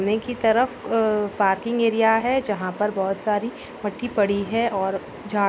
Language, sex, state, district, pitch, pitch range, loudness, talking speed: Hindi, female, Uttar Pradesh, Gorakhpur, 210 Hz, 200-230 Hz, -23 LUFS, 175 wpm